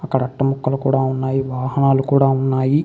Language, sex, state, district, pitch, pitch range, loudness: Telugu, male, Andhra Pradesh, Krishna, 135 Hz, 130-135 Hz, -18 LUFS